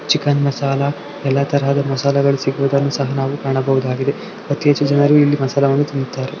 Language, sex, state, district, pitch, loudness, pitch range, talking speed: Kannada, male, Karnataka, Belgaum, 140 Hz, -17 LUFS, 135-145 Hz, 150 wpm